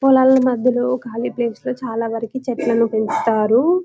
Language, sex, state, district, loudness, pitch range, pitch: Telugu, female, Telangana, Karimnagar, -18 LUFS, 230-255 Hz, 240 Hz